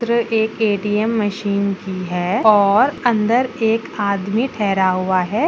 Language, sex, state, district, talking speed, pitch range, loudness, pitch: Hindi, female, Bihar, Bhagalpur, 140 wpm, 195-225 Hz, -18 LUFS, 210 Hz